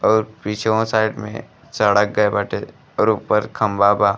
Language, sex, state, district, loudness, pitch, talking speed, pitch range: Bhojpuri, male, Uttar Pradesh, Gorakhpur, -19 LUFS, 105 Hz, 160 wpm, 105-110 Hz